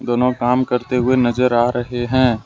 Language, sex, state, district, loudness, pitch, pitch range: Hindi, male, Jharkhand, Ranchi, -17 LUFS, 125 Hz, 120-125 Hz